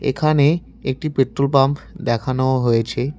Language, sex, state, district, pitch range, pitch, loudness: Bengali, male, West Bengal, Cooch Behar, 130-145 Hz, 135 Hz, -19 LUFS